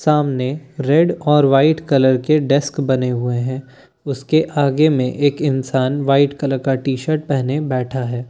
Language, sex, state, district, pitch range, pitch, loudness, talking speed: Hindi, male, Bihar, Katihar, 130-150 Hz, 135 Hz, -17 LUFS, 160 wpm